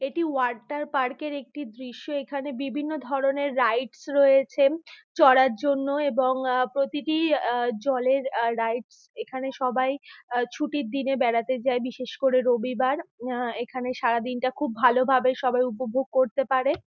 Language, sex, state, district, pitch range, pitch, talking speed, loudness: Bengali, female, West Bengal, Purulia, 250-285 Hz, 265 Hz, 155 wpm, -25 LUFS